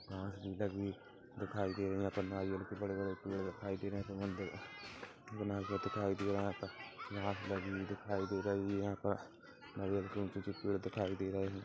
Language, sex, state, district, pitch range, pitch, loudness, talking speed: Hindi, male, Chhattisgarh, Kabirdham, 95-100 Hz, 100 Hz, -41 LUFS, 205 wpm